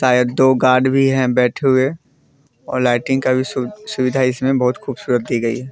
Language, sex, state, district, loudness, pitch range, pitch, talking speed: Hindi, male, Bihar, Vaishali, -17 LUFS, 125-135 Hz, 130 Hz, 200 wpm